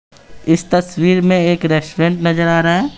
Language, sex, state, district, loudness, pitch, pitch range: Hindi, male, Bihar, Patna, -14 LUFS, 170 Hz, 165-180 Hz